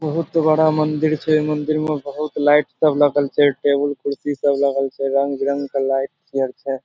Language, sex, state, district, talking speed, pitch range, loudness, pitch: Maithili, male, Bihar, Supaul, 190 wpm, 140-155 Hz, -19 LUFS, 145 Hz